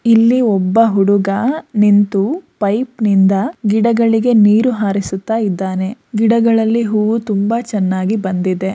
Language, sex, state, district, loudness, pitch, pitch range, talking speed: Kannada, female, Karnataka, Shimoga, -14 LUFS, 215 Hz, 195-230 Hz, 105 wpm